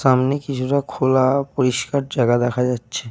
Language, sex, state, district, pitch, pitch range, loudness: Bengali, male, Jharkhand, Jamtara, 130 Hz, 120-135 Hz, -19 LUFS